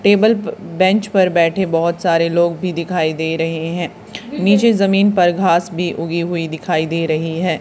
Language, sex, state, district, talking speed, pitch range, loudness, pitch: Hindi, female, Haryana, Charkhi Dadri, 190 wpm, 165-190 Hz, -16 LUFS, 175 Hz